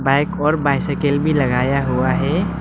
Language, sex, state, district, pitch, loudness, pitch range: Hindi, male, Arunachal Pradesh, Lower Dibang Valley, 140 Hz, -18 LUFS, 130-150 Hz